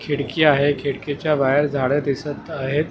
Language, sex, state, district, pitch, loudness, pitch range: Marathi, male, Maharashtra, Mumbai Suburban, 145 Hz, -20 LUFS, 140-150 Hz